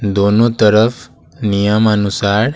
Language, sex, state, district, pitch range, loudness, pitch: Hindi, male, Bihar, Patna, 100-115 Hz, -13 LUFS, 105 Hz